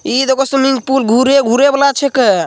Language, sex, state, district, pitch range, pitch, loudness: Hindi, male, Bihar, Begusarai, 260-275 Hz, 270 Hz, -12 LUFS